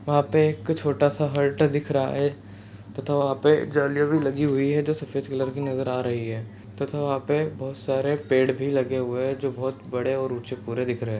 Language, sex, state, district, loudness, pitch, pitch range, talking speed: Hindi, male, Chhattisgarh, Sarguja, -25 LUFS, 135 Hz, 130-145 Hz, 235 wpm